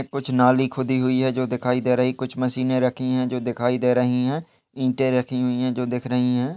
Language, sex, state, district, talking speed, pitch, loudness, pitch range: Hindi, male, Chhattisgarh, Balrampur, 235 wpm, 125 Hz, -22 LUFS, 125-130 Hz